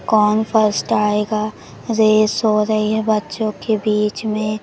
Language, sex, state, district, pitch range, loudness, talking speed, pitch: Hindi, female, Madhya Pradesh, Umaria, 210-220 Hz, -17 LUFS, 145 wpm, 215 Hz